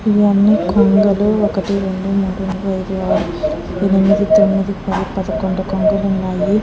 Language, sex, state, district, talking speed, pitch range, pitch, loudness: Telugu, male, Andhra Pradesh, Guntur, 145 wpm, 190-210 Hz, 200 Hz, -16 LUFS